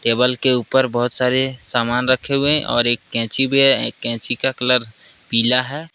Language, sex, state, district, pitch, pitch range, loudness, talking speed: Hindi, male, Jharkhand, Ranchi, 125 Hz, 120-135 Hz, -16 LUFS, 180 wpm